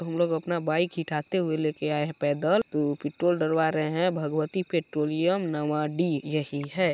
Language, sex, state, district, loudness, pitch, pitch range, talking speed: Hindi, female, Chhattisgarh, Balrampur, -27 LUFS, 155 Hz, 150-175 Hz, 175 wpm